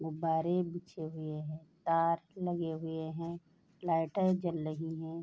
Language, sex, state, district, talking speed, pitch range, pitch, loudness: Hindi, female, Bihar, Bhagalpur, 135 wpm, 160-175 Hz, 165 Hz, -35 LUFS